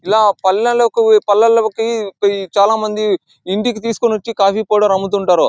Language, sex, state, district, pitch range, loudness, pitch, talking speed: Telugu, male, Andhra Pradesh, Anantapur, 200-225 Hz, -14 LUFS, 210 Hz, 130 wpm